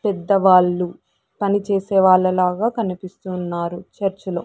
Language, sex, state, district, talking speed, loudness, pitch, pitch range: Telugu, female, Andhra Pradesh, Sri Satya Sai, 110 wpm, -19 LUFS, 185 Hz, 180-200 Hz